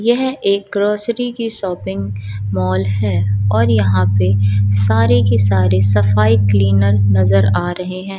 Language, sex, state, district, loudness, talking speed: Hindi, female, Madhya Pradesh, Katni, -15 LUFS, 140 wpm